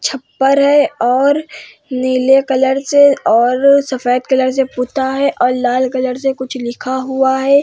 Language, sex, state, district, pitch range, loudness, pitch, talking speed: Hindi, female, Uttar Pradesh, Hamirpur, 255-280 Hz, -13 LUFS, 265 Hz, 155 wpm